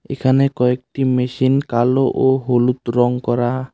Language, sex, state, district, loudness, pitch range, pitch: Bengali, male, West Bengal, Cooch Behar, -17 LUFS, 125-130 Hz, 130 Hz